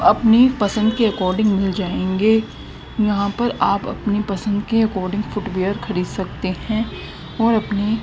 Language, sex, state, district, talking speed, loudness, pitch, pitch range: Hindi, female, Haryana, Charkhi Dadri, 140 wpm, -19 LUFS, 210 Hz, 195-220 Hz